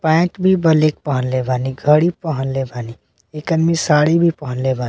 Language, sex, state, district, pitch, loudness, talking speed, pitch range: Bhojpuri, male, Bihar, Muzaffarpur, 150 Hz, -17 LUFS, 170 wpm, 130-165 Hz